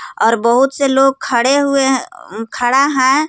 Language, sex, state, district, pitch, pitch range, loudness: Hindi, female, Jharkhand, Garhwa, 270 Hz, 240-280 Hz, -13 LUFS